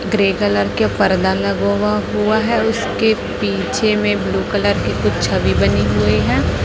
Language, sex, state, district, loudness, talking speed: Hindi, female, Chhattisgarh, Raipur, -16 LUFS, 160 wpm